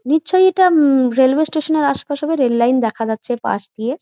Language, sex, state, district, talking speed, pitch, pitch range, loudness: Bengali, female, West Bengal, Jhargram, 240 wpm, 280 Hz, 245-310 Hz, -16 LUFS